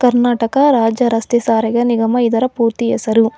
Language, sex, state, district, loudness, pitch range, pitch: Kannada, female, Karnataka, Bangalore, -14 LUFS, 225-245 Hz, 235 Hz